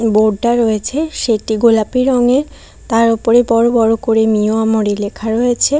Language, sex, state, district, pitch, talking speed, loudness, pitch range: Bengali, female, West Bengal, Kolkata, 230 Hz, 155 wpm, -14 LUFS, 220-245 Hz